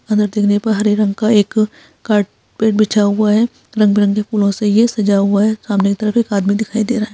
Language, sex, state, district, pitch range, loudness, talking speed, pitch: Hindi, female, Bihar, Saharsa, 205-220 Hz, -15 LUFS, 225 wpm, 210 Hz